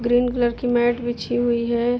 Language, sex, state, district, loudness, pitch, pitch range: Hindi, female, Jharkhand, Jamtara, -21 LUFS, 240 Hz, 240-245 Hz